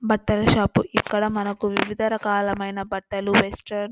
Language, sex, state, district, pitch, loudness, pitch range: Telugu, female, Andhra Pradesh, Anantapur, 205 Hz, -22 LUFS, 200-215 Hz